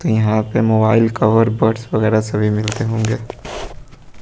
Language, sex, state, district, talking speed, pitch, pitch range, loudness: Hindi, male, Bihar, West Champaran, 130 wpm, 110 Hz, 110-115 Hz, -16 LUFS